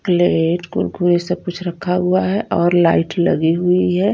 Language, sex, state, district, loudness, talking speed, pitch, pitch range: Hindi, female, Punjab, Kapurthala, -17 LUFS, 160 wpm, 180 Hz, 175-180 Hz